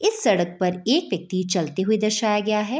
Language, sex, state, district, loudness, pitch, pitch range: Hindi, female, Bihar, Madhepura, -22 LUFS, 210 Hz, 185-220 Hz